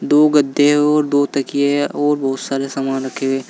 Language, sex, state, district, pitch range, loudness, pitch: Hindi, male, Uttar Pradesh, Saharanpur, 135-145 Hz, -16 LUFS, 140 Hz